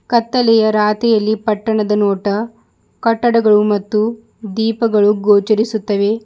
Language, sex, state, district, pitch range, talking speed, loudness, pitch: Kannada, female, Karnataka, Bidar, 210-225 Hz, 75 wpm, -15 LUFS, 215 Hz